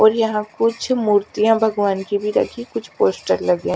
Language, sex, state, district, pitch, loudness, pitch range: Hindi, female, Chandigarh, Chandigarh, 215 Hz, -19 LUFS, 205-230 Hz